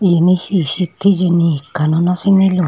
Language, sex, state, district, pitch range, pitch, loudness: Chakma, female, Tripura, Unakoti, 170-190 Hz, 180 Hz, -14 LUFS